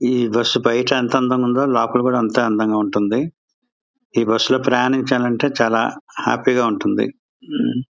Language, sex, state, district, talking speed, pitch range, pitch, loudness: Telugu, male, Andhra Pradesh, Visakhapatnam, 135 wpm, 115-135 Hz, 125 Hz, -18 LUFS